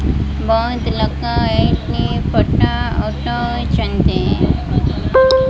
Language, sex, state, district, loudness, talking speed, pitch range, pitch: Odia, female, Odisha, Malkangiri, -16 LUFS, 55 wpm, 70-80 Hz, 75 Hz